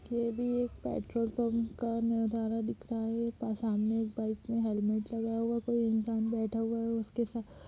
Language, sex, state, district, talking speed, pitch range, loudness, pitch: Hindi, female, Bihar, Darbhanga, 210 wpm, 225-230 Hz, -33 LUFS, 230 Hz